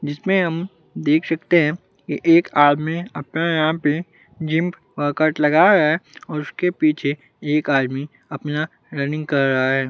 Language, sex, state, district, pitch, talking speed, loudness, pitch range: Hindi, male, Bihar, Kaimur, 155 Hz, 155 wpm, -19 LUFS, 145-165 Hz